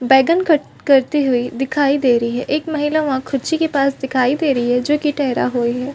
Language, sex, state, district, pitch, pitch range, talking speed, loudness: Hindi, female, Chhattisgarh, Balrampur, 275 Hz, 250-295 Hz, 240 wpm, -17 LUFS